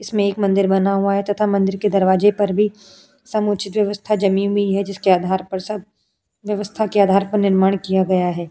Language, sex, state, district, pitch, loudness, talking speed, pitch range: Hindi, female, Uttar Pradesh, Jyotiba Phule Nagar, 200 Hz, -18 LUFS, 210 wpm, 195-205 Hz